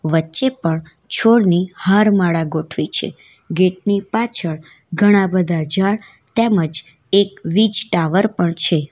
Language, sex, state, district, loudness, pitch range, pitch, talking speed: Gujarati, female, Gujarat, Valsad, -16 LUFS, 165-205 Hz, 185 Hz, 130 wpm